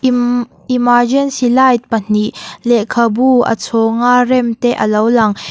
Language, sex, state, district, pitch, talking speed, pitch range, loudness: Mizo, female, Mizoram, Aizawl, 240 Hz, 120 wpm, 225-250 Hz, -13 LUFS